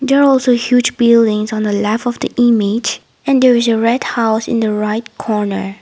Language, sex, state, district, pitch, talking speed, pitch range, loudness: English, female, Nagaland, Dimapur, 230 Hz, 215 wpm, 215-245 Hz, -14 LUFS